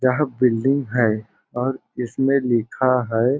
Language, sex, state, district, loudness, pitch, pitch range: Hindi, male, Chhattisgarh, Balrampur, -21 LUFS, 125 Hz, 120-135 Hz